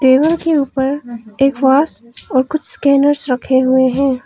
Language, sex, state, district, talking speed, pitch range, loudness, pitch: Hindi, female, Arunachal Pradesh, Papum Pare, 140 wpm, 260-285 Hz, -14 LUFS, 270 Hz